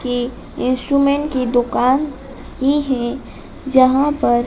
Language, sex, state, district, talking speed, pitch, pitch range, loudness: Hindi, male, Madhya Pradesh, Dhar, 105 wpm, 265 Hz, 250-280 Hz, -17 LUFS